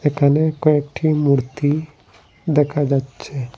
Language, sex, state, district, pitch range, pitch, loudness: Bengali, male, Assam, Hailakandi, 135-150 Hz, 145 Hz, -18 LUFS